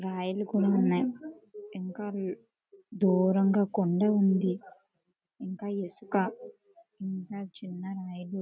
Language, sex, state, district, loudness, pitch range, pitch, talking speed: Telugu, female, Andhra Pradesh, Visakhapatnam, -30 LUFS, 185-210 Hz, 195 Hz, 70 wpm